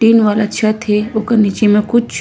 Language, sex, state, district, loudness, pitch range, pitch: Chhattisgarhi, female, Chhattisgarh, Korba, -13 LUFS, 210-225 Hz, 215 Hz